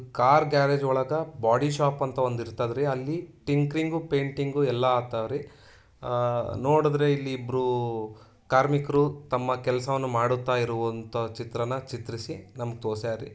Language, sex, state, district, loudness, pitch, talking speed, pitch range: Kannada, male, Karnataka, Dharwad, -27 LUFS, 130 Hz, 130 wpm, 120-145 Hz